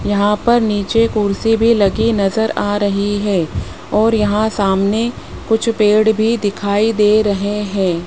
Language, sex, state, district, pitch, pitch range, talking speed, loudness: Hindi, female, Rajasthan, Jaipur, 210 Hz, 200-220 Hz, 150 wpm, -15 LUFS